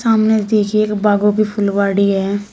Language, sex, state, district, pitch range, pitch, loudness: Hindi, female, Uttar Pradesh, Shamli, 200-215 Hz, 210 Hz, -15 LUFS